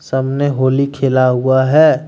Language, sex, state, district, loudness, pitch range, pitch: Hindi, male, Jharkhand, Deoghar, -14 LUFS, 130-140 Hz, 135 Hz